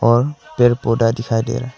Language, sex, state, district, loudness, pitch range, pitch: Hindi, male, Arunachal Pradesh, Longding, -17 LUFS, 115-125 Hz, 120 Hz